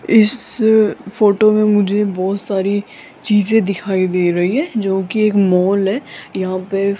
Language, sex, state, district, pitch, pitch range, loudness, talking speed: Hindi, female, Rajasthan, Jaipur, 200 Hz, 190-215 Hz, -16 LUFS, 165 wpm